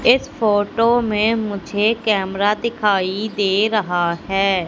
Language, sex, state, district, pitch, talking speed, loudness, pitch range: Hindi, female, Madhya Pradesh, Katni, 205 Hz, 115 wpm, -18 LUFS, 195-220 Hz